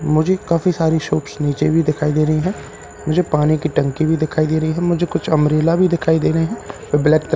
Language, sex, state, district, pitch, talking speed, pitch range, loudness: Hindi, male, Bihar, Katihar, 155 Hz, 235 wpm, 155-170 Hz, -17 LUFS